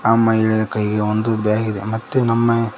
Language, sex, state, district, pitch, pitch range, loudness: Kannada, male, Karnataka, Koppal, 110 Hz, 110-115 Hz, -18 LUFS